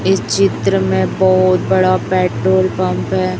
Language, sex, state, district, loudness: Hindi, female, Chhattisgarh, Raipur, -14 LUFS